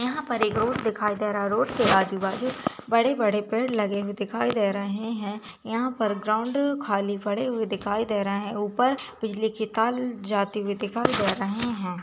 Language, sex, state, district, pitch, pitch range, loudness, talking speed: Hindi, female, Chhattisgarh, Balrampur, 215 Hz, 205-240 Hz, -26 LUFS, 205 wpm